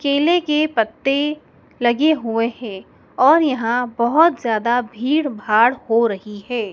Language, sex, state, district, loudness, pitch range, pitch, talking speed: Hindi, male, Madhya Pradesh, Dhar, -18 LUFS, 225-295 Hz, 245 Hz, 135 wpm